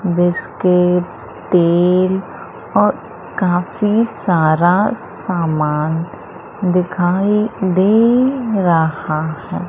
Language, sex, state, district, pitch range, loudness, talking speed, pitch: Hindi, female, Madhya Pradesh, Umaria, 170-200 Hz, -16 LUFS, 60 wpm, 180 Hz